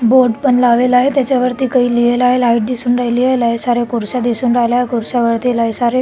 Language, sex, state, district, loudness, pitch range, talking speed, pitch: Marathi, female, Maharashtra, Sindhudurg, -14 LUFS, 240-250 Hz, 220 wpm, 245 Hz